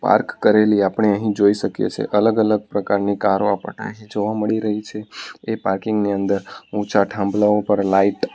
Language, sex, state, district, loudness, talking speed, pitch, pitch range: Gujarati, male, Gujarat, Valsad, -19 LUFS, 170 wpm, 105 Hz, 100-105 Hz